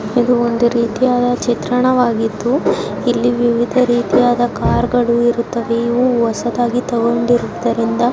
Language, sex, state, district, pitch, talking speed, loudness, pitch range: Kannada, male, Karnataka, Bijapur, 240 Hz, 95 wpm, -15 LUFS, 235-245 Hz